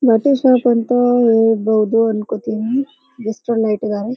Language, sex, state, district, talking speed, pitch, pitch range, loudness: Kannada, female, Karnataka, Dharwad, 100 wpm, 230 Hz, 220-245 Hz, -15 LUFS